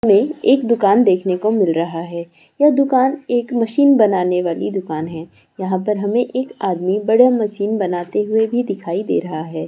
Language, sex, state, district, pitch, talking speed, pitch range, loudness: Hindi, female, Bihar, Purnia, 205 Hz, 190 wpm, 180-240 Hz, -17 LUFS